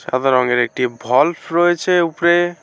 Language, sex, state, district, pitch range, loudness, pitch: Bengali, male, West Bengal, Alipurduar, 125-175 Hz, -16 LUFS, 165 Hz